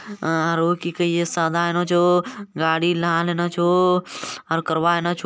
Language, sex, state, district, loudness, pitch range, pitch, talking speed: Maithili, male, Bihar, Bhagalpur, -20 LUFS, 165-175 Hz, 175 Hz, 150 wpm